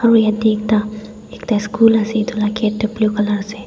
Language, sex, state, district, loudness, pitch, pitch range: Nagamese, female, Nagaland, Dimapur, -16 LUFS, 215 Hz, 215-220 Hz